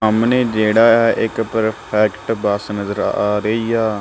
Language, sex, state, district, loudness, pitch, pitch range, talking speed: Punjabi, male, Punjab, Kapurthala, -17 LUFS, 110 Hz, 105-115 Hz, 150 wpm